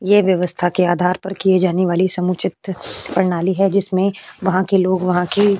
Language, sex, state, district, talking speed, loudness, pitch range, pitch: Hindi, female, Uttar Pradesh, Hamirpur, 195 wpm, -17 LUFS, 180-195 Hz, 185 Hz